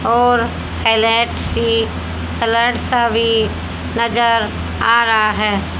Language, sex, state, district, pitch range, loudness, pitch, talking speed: Hindi, female, Haryana, Jhajjar, 180-235 Hz, -16 LUFS, 230 Hz, 95 wpm